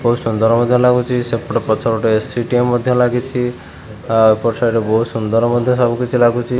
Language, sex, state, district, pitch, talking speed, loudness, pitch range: Odia, male, Odisha, Khordha, 120 Hz, 155 wpm, -15 LUFS, 115-125 Hz